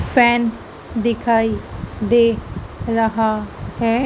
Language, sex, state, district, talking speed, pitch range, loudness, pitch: Hindi, female, Madhya Pradesh, Dhar, 75 wpm, 225-235 Hz, -19 LUFS, 230 Hz